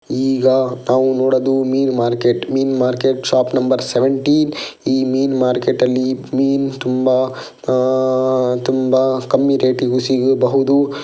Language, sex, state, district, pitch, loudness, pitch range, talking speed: Kannada, male, Karnataka, Dakshina Kannada, 130 Hz, -16 LUFS, 130-135 Hz, 115 wpm